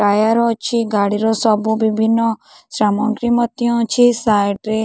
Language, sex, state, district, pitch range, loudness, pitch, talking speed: Odia, female, Odisha, Khordha, 215-235 Hz, -16 LUFS, 220 Hz, 135 wpm